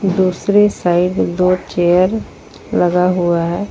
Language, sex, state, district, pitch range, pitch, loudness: Hindi, female, Jharkhand, Ranchi, 175-190 Hz, 180 Hz, -15 LUFS